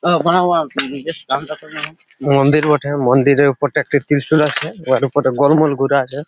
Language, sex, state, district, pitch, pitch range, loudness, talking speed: Bengali, male, West Bengal, Purulia, 145 Hz, 140-155 Hz, -15 LUFS, 125 wpm